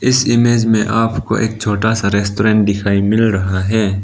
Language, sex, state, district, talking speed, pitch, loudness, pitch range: Hindi, male, Arunachal Pradesh, Lower Dibang Valley, 180 wpm, 110 Hz, -14 LUFS, 100-115 Hz